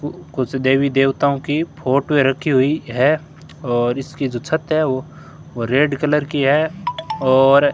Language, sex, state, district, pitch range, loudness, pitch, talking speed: Hindi, male, Rajasthan, Bikaner, 135-155 Hz, -18 LUFS, 140 Hz, 155 wpm